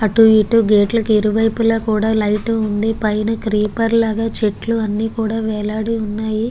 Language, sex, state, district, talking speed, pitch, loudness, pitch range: Telugu, female, Andhra Pradesh, Guntur, 140 wpm, 220 Hz, -17 LUFS, 215-225 Hz